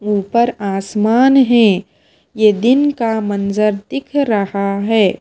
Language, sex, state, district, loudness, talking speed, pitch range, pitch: Hindi, female, Himachal Pradesh, Shimla, -15 LUFS, 115 wpm, 200-240 Hz, 215 Hz